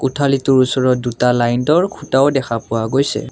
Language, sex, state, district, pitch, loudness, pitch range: Assamese, male, Assam, Kamrup Metropolitan, 130 Hz, -16 LUFS, 120-135 Hz